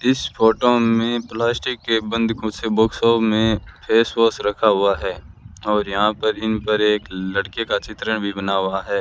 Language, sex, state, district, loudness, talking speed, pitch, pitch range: Hindi, male, Rajasthan, Bikaner, -19 LUFS, 175 wpm, 110 Hz, 100-115 Hz